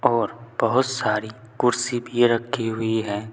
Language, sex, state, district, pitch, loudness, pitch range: Hindi, male, Uttar Pradesh, Saharanpur, 115 Hz, -23 LUFS, 110-120 Hz